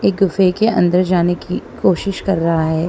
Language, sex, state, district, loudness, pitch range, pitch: Hindi, female, Punjab, Kapurthala, -16 LUFS, 175-195 Hz, 180 Hz